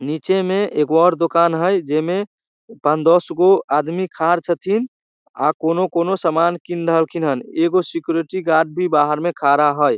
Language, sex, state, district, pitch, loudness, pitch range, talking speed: Maithili, male, Bihar, Samastipur, 170 Hz, -18 LUFS, 155-180 Hz, 160 wpm